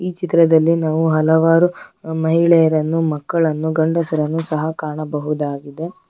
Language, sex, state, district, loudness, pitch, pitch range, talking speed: Kannada, female, Karnataka, Bangalore, -17 LUFS, 160 Hz, 155-165 Hz, 90 wpm